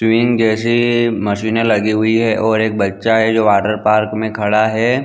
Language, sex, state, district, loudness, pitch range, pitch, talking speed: Hindi, male, Chhattisgarh, Bilaspur, -14 LUFS, 110-115 Hz, 110 Hz, 190 wpm